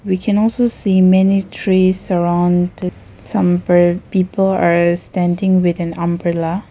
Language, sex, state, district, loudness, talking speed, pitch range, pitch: English, female, Nagaland, Kohima, -15 LUFS, 125 wpm, 175-190 Hz, 185 Hz